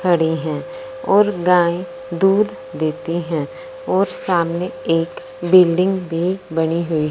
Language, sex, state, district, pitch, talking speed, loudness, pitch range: Hindi, male, Punjab, Fazilka, 175 Hz, 125 wpm, -18 LUFS, 165-185 Hz